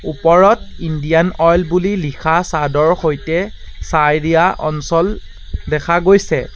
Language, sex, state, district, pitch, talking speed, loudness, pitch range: Assamese, male, Assam, Sonitpur, 165 Hz, 100 wpm, -14 LUFS, 155-175 Hz